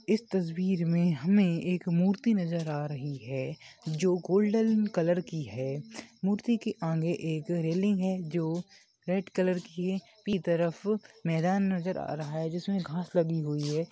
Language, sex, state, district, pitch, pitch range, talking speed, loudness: Hindi, male, Maharashtra, Nagpur, 175 Hz, 165-195 Hz, 160 wpm, -30 LUFS